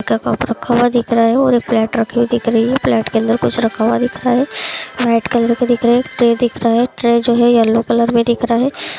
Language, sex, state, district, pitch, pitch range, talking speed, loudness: Hindi, female, Bihar, Araria, 235 Hz, 230-245 Hz, 300 wpm, -14 LUFS